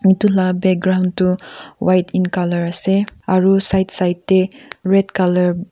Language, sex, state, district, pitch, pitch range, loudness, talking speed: Nagamese, female, Nagaland, Kohima, 185 Hz, 180-195 Hz, -16 LUFS, 145 wpm